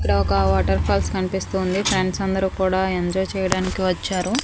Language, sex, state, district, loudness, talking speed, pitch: Telugu, female, Andhra Pradesh, Manyam, -21 LUFS, 135 wpm, 185 Hz